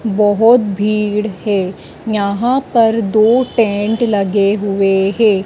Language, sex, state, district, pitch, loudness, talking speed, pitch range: Hindi, female, Madhya Pradesh, Dhar, 210 Hz, -14 LUFS, 110 wpm, 200-225 Hz